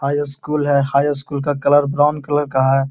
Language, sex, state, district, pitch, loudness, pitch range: Hindi, male, Bihar, Gaya, 145 Hz, -17 LUFS, 140-145 Hz